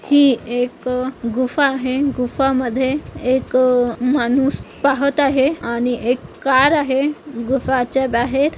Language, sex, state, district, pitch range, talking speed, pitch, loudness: Marathi, female, Maharashtra, Sindhudurg, 250-275 Hz, 110 wpm, 265 Hz, -18 LUFS